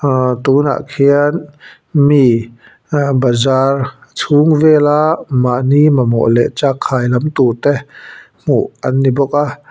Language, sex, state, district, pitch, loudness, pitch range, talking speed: Mizo, male, Mizoram, Aizawl, 140 Hz, -13 LUFS, 125-145 Hz, 125 wpm